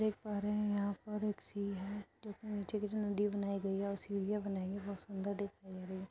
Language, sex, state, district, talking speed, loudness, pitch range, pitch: Hindi, female, Uttar Pradesh, Etah, 265 wpm, -40 LUFS, 195-210 Hz, 200 Hz